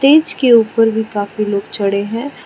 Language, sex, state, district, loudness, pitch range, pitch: Hindi, female, Arunachal Pradesh, Lower Dibang Valley, -15 LUFS, 205-240 Hz, 220 Hz